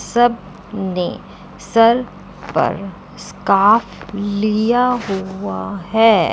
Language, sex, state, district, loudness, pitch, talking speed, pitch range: Hindi, female, Chandigarh, Chandigarh, -17 LUFS, 200 Hz, 75 wpm, 190-225 Hz